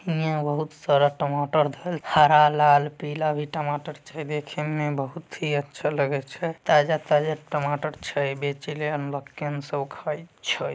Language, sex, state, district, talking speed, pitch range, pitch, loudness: Magahi, male, Bihar, Samastipur, 130 wpm, 145-155 Hz, 150 Hz, -25 LUFS